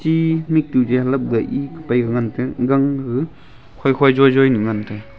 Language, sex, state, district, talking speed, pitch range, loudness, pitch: Wancho, male, Arunachal Pradesh, Longding, 195 wpm, 120-140 Hz, -17 LUFS, 130 Hz